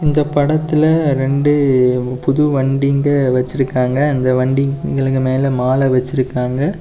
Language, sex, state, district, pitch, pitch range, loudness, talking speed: Tamil, male, Tamil Nadu, Kanyakumari, 135 Hz, 130-145 Hz, -15 LUFS, 95 wpm